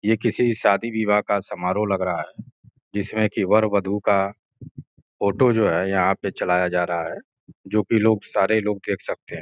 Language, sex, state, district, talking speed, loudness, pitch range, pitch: Hindi, male, Uttar Pradesh, Gorakhpur, 195 wpm, -22 LUFS, 100-110 Hz, 105 Hz